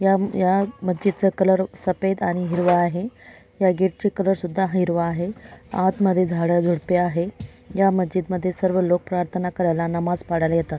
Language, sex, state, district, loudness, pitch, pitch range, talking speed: Marathi, female, Maharashtra, Dhule, -22 LUFS, 185 Hz, 175-190 Hz, 155 wpm